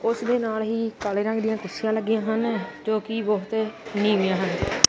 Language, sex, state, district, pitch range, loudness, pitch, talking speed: Punjabi, male, Punjab, Kapurthala, 210-225 Hz, -25 LUFS, 220 Hz, 185 wpm